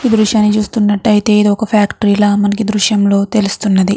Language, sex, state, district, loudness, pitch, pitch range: Telugu, female, Andhra Pradesh, Chittoor, -12 LUFS, 210 Hz, 205-215 Hz